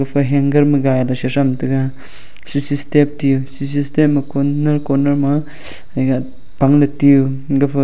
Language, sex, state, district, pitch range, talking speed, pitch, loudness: Wancho, male, Arunachal Pradesh, Longding, 135-145 Hz, 145 wpm, 140 Hz, -16 LUFS